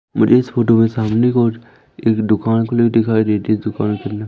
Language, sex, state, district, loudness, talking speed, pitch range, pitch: Hindi, male, Madhya Pradesh, Umaria, -16 LUFS, 225 wpm, 110-120 Hz, 115 Hz